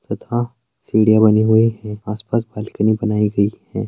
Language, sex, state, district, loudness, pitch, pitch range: Hindi, male, Rajasthan, Nagaur, -17 LUFS, 110 Hz, 105-115 Hz